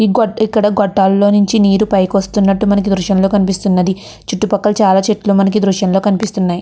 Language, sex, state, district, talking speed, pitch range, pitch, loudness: Telugu, female, Andhra Pradesh, Guntur, 210 wpm, 195-210 Hz, 200 Hz, -13 LUFS